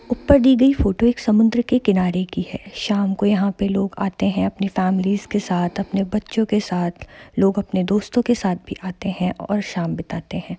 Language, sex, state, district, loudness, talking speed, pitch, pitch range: Hindi, female, Uttar Pradesh, Jyotiba Phule Nagar, -20 LUFS, 200 wpm, 200 Hz, 185-215 Hz